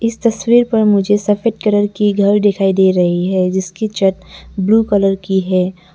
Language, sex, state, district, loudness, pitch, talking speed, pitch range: Hindi, female, Arunachal Pradesh, Lower Dibang Valley, -14 LUFS, 200 Hz, 180 wpm, 190-210 Hz